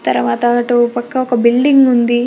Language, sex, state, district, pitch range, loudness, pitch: Telugu, female, Telangana, Hyderabad, 235-245 Hz, -13 LUFS, 240 Hz